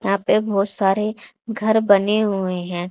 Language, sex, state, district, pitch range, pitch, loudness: Hindi, female, Haryana, Charkhi Dadri, 195-215 Hz, 200 Hz, -19 LUFS